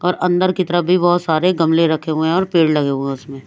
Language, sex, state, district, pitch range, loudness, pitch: Hindi, female, Odisha, Malkangiri, 155-180 Hz, -16 LUFS, 165 Hz